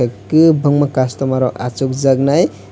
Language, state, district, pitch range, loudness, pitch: Kokborok, Tripura, West Tripura, 125-145 Hz, -14 LUFS, 135 Hz